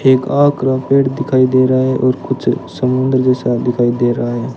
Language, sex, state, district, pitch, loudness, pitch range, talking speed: Hindi, male, Rajasthan, Bikaner, 130 Hz, -14 LUFS, 125-130 Hz, 195 wpm